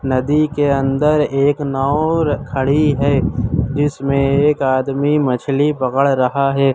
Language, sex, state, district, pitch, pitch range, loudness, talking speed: Hindi, male, Uttar Pradesh, Lucknow, 140 Hz, 135-145 Hz, -16 LUFS, 125 wpm